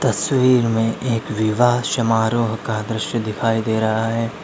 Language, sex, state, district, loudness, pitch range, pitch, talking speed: Hindi, male, Uttar Pradesh, Lalitpur, -19 LUFS, 110-120 Hz, 115 Hz, 150 wpm